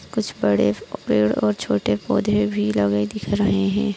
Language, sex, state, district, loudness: Hindi, female, Maharashtra, Nagpur, -21 LUFS